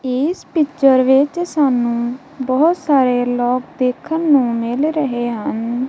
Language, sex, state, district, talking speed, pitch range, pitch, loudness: Punjabi, female, Punjab, Kapurthala, 120 wpm, 245-295 Hz, 265 Hz, -17 LUFS